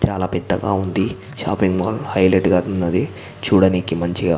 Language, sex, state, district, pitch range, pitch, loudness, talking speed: Telugu, male, Andhra Pradesh, Visakhapatnam, 90-100 Hz, 95 Hz, -19 LUFS, 135 wpm